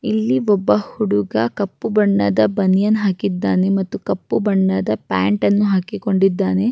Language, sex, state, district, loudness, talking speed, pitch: Kannada, female, Karnataka, Raichur, -18 LUFS, 70 wpm, 195 Hz